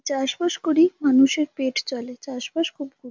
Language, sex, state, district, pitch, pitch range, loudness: Bengali, female, West Bengal, Jhargram, 275 Hz, 260-315 Hz, -22 LUFS